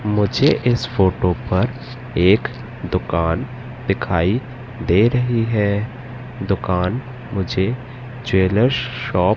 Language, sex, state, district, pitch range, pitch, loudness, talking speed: Hindi, male, Madhya Pradesh, Katni, 95-125 Hz, 115 Hz, -19 LUFS, 95 wpm